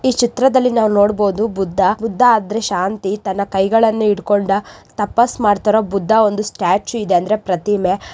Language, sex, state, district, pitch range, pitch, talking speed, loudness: Kannada, female, Karnataka, Raichur, 195-225 Hz, 210 Hz, 120 wpm, -16 LUFS